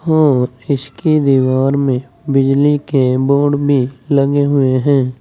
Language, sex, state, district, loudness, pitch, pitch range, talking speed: Hindi, male, Uttar Pradesh, Saharanpur, -14 LUFS, 140 Hz, 130-145 Hz, 125 wpm